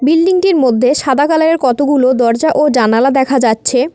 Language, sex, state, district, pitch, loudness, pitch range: Bengali, female, West Bengal, Cooch Behar, 270 Hz, -11 LUFS, 255-310 Hz